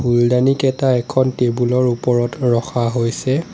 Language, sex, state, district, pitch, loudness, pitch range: Assamese, male, Assam, Sonitpur, 125 Hz, -17 LUFS, 120-130 Hz